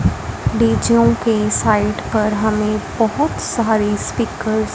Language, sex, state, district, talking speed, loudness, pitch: Hindi, female, Punjab, Fazilka, 115 wpm, -17 LUFS, 210 Hz